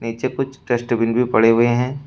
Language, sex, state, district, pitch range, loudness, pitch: Hindi, male, Uttar Pradesh, Shamli, 115-125 Hz, -18 LUFS, 120 Hz